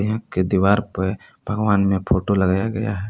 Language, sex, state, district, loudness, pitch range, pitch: Hindi, male, Jharkhand, Palamu, -20 LUFS, 95-105 Hz, 100 Hz